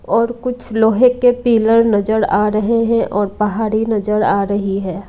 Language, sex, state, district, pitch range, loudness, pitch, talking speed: Hindi, female, Punjab, Kapurthala, 205-230 Hz, -15 LUFS, 220 Hz, 175 wpm